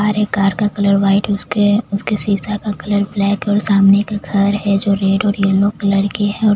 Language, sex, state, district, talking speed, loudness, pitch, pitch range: Hindi, female, Chhattisgarh, Jashpur, 200 wpm, -15 LUFS, 200 Hz, 200-210 Hz